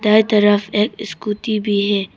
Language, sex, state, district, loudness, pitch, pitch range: Hindi, female, Arunachal Pradesh, Papum Pare, -17 LUFS, 210 Hz, 205-215 Hz